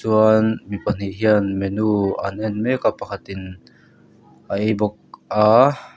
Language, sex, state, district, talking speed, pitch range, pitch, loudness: Mizo, male, Mizoram, Aizawl, 140 wpm, 100-110 Hz, 105 Hz, -19 LUFS